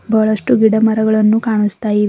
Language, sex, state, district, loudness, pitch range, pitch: Kannada, female, Karnataka, Bidar, -13 LUFS, 215-220 Hz, 220 Hz